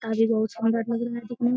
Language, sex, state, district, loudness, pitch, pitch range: Hindi, female, Bihar, Jamui, -25 LUFS, 230 Hz, 225-235 Hz